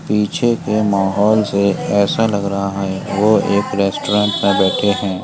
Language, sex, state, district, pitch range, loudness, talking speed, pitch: Hindi, male, Uttar Pradesh, Etah, 100-105 Hz, -16 LUFS, 160 wpm, 100 Hz